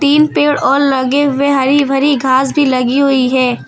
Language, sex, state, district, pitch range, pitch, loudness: Hindi, female, Uttar Pradesh, Lucknow, 260-285 Hz, 275 Hz, -12 LUFS